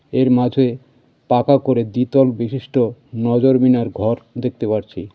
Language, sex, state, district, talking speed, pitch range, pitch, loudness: Bengali, male, West Bengal, Cooch Behar, 140 wpm, 115-130 Hz, 125 Hz, -17 LUFS